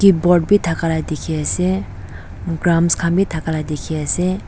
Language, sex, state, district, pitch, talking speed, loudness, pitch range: Nagamese, female, Nagaland, Dimapur, 160 Hz, 145 wpm, -18 LUFS, 150-175 Hz